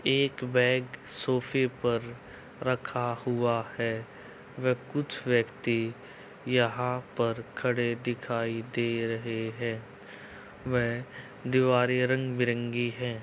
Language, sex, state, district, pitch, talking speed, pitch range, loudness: Hindi, male, Uttar Pradesh, Budaun, 120 Hz, 95 wpm, 115-125 Hz, -30 LUFS